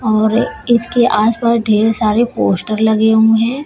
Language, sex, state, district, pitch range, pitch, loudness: Hindi, female, Uttar Pradesh, Shamli, 215-235 Hz, 220 Hz, -13 LUFS